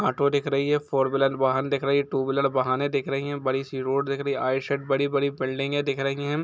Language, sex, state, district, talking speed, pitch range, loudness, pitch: Hindi, male, Bihar, Gopalganj, 260 wpm, 135-140 Hz, -25 LUFS, 140 Hz